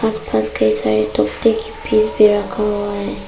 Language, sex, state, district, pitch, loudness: Hindi, female, Arunachal Pradesh, Papum Pare, 205 Hz, -16 LUFS